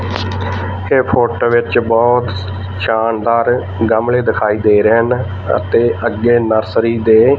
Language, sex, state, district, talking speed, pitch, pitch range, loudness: Punjabi, male, Punjab, Fazilka, 115 wpm, 110 Hz, 95-120 Hz, -14 LUFS